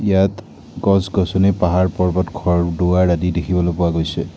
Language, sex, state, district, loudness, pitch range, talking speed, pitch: Assamese, male, Assam, Kamrup Metropolitan, -17 LUFS, 85-95 Hz, 110 wpm, 90 Hz